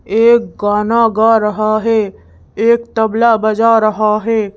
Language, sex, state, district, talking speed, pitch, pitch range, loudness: Hindi, female, Madhya Pradesh, Bhopal, 130 wpm, 220 Hz, 210-230 Hz, -13 LUFS